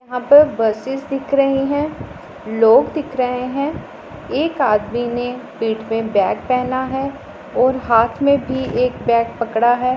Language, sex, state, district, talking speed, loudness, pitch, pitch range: Hindi, female, Punjab, Pathankot, 155 wpm, -17 LUFS, 250 Hz, 230-275 Hz